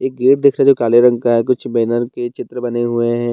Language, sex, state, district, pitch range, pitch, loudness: Hindi, male, Bihar, Bhagalpur, 120-125 Hz, 120 Hz, -15 LUFS